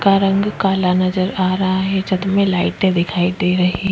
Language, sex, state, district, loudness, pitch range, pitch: Hindi, female, Bihar, Vaishali, -17 LUFS, 180-195 Hz, 190 Hz